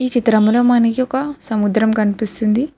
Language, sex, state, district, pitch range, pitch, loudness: Telugu, female, Telangana, Hyderabad, 215-255 Hz, 230 Hz, -16 LUFS